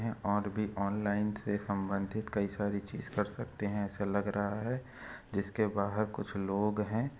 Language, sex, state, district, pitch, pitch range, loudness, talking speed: Hindi, male, Chhattisgarh, Korba, 105 Hz, 100-110 Hz, -35 LUFS, 175 wpm